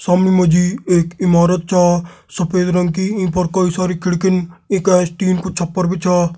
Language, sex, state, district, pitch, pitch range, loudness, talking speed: Garhwali, male, Uttarakhand, Tehri Garhwal, 180 Hz, 175-185 Hz, -16 LUFS, 180 wpm